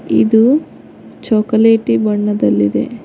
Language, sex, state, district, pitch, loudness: Kannada, female, Karnataka, Koppal, 165 Hz, -13 LUFS